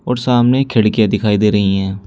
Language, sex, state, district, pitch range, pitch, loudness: Hindi, male, Uttar Pradesh, Shamli, 105-125 Hz, 105 Hz, -14 LUFS